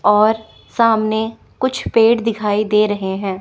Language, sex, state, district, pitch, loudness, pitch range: Hindi, female, Chandigarh, Chandigarh, 215 Hz, -17 LUFS, 205-225 Hz